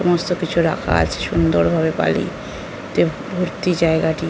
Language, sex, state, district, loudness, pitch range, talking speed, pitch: Bengali, female, West Bengal, North 24 Parganas, -19 LUFS, 160-180 Hz, 140 wpm, 165 Hz